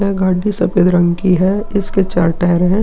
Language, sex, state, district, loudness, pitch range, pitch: Hindi, male, Uttar Pradesh, Hamirpur, -14 LUFS, 175-200 Hz, 185 Hz